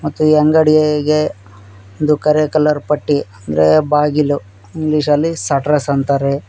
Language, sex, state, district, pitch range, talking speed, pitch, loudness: Kannada, male, Karnataka, Koppal, 140-150 Hz, 120 wpm, 150 Hz, -14 LUFS